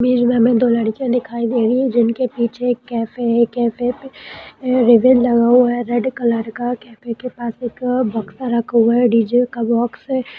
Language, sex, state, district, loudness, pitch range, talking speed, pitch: Hindi, female, Bihar, Purnia, -17 LUFS, 235-250 Hz, 210 wpm, 240 Hz